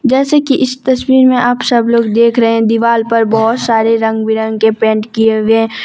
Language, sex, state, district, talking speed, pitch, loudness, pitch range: Hindi, female, Jharkhand, Deoghar, 225 wpm, 230 Hz, -11 LUFS, 225-250 Hz